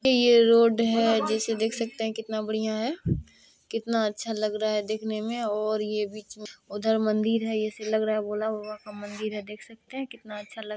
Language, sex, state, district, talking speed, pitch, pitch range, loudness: Maithili, female, Bihar, Bhagalpur, 210 wpm, 220 Hz, 215-225 Hz, -26 LUFS